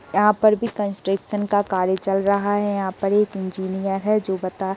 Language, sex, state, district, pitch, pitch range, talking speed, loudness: Hindi, female, Uttar Pradesh, Deoria, 195 Hz, 190-205 Hz, 215 wpm, -21 LUFS